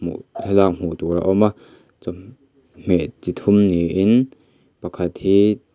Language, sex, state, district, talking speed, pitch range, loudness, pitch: Mizo, male, Mizoram, Aizawl, 145 wpm, 90-105 Hz, -18 LUFS, 95 Hz